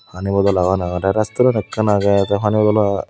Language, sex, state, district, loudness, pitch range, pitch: Chakma, female, Tripura, Unakoti, -17 LUFS, 95-105 Hz, 100 Hz